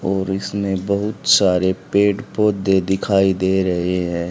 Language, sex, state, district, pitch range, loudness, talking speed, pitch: Hindi, male, Haryana, Rohtak, 95-100 Hz, -18 LUFS, 140 wpm, 95 Hz